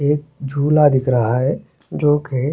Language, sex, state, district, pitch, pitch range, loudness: Hindi, male, Chhattisgarh, Korba, 145 Hz, 130-150 Hz, -17 LUFS